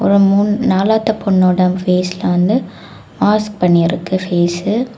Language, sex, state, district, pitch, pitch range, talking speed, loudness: Tamil, female, Tamil Nadu, Kanyakumari, 190 Hz, 180-210 Hz, 120 wpm, -14 LUFS